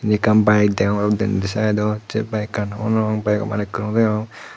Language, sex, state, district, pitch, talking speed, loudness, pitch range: Chakma, male, Tripura, Unakoti, 105 Hz, 145 wpm, -19 LUFS, 105-110 Hz